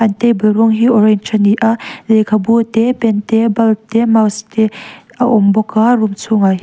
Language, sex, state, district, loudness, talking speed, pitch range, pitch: Mizo, female, Mizoram, Aizawl, -12 LUFS, 200 wpm, 215-230 Hz, 220 Hz